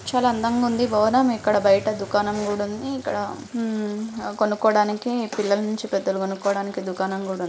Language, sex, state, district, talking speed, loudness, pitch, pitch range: Telugu, female, Andhra Pradesh, Srikakulam, 130 wpm, -23 LUFS, 210 Hz, 200-230 Hz